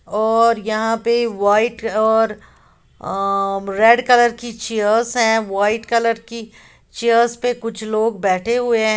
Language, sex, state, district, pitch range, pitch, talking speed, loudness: Hindi, female, Uttar Pradesh, Lalitpur, 215-230 Hz, 225 Hz, 140 wpm, -17 LUFS